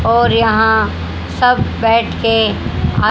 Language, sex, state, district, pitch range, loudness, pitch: Hindi, female, Haryana, Jhajjar, 215-230 Hz, -14 LUFS, 225 Hz